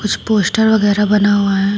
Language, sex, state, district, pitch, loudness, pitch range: Hindi, female, Uttar Pradesh, Shamli, 205 Hz, -13 LUFS, 205-215 Hz